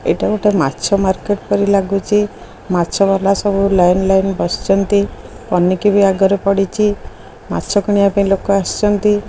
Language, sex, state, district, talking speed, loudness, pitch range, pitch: Odia, female, Odisha, Khordha, 130 wpm, -15 LUFS, 195-205 Hz, 200 Hz